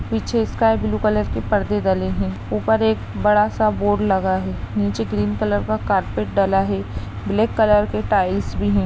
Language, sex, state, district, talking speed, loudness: Hindi, female, Bihar, Darbhanga, 185 wpm, -20 LUFS